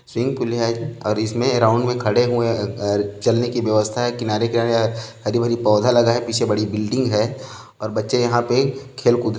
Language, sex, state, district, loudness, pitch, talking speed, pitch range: Hindi, male, Chhattisgarh, Bilaspur, -20 LUFS, 115 Hz, 185 wpm, 110-120 Hz